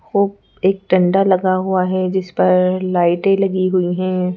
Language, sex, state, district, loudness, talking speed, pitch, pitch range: Hindi, female, Madhya Pradesh, Bhopal, -16 LUFS, 165 wpm, 185 Hz, 185-190 Hz